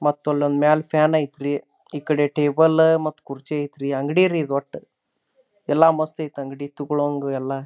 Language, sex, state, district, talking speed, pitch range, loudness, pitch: Kannada, male, Karnataka, Dharwad, 165 wpm, 140-155 Hz, -21 LUFS, 150 Hz